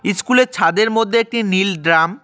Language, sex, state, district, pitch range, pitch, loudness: Bengali, male, West Bengal, Cooch Behar, 180-230 Hz, 215 Hz, -15 LUFS